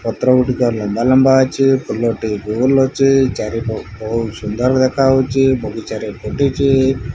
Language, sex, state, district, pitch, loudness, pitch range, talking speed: Odia, male, Odisha, Malkangiri, 125 Hz, -15 LUFS, 110-135 Hz, 135 wpm